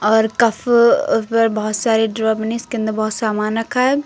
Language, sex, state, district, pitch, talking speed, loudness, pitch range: Hindi, female, Uttar Pradesh, Lucknow, 225 Hz, 145 wpm, -17 LUFS, 215-235 Hz